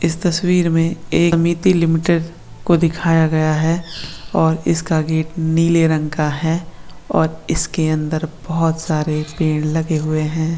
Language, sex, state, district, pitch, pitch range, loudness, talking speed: Marwari, female, Rajasthan, Nagaur, 160 Hz, 155-170 Hz, -17 LUFS, 130 wpm